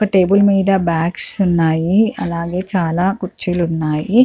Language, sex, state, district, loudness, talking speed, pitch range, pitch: Telugu, female, Andhra Pradesh, Chittoor, -16 LUFS, 125 wpm, 170-195 Hz, 180 Hz